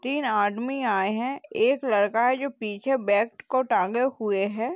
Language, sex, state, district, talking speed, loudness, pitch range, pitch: Hindi, female, Uttar Pradesh, Jalaun, 175 wpm, -25 LUFS, 205-265 Hz, 240 Hz